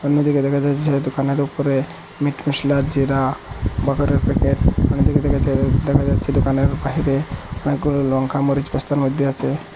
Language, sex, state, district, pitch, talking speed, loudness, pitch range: Bengali, male, Assam, Hailakandi, 140 Hz, 150 wpm, -19 LUFS, 135-145 Hz